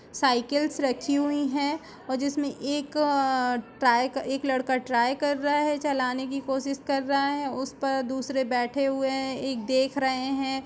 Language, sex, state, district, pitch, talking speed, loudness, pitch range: Hindi, female, Bihar, Sitamarhi, 270 Hz, 175 wpm, -27 LUFS, 260-285 Hz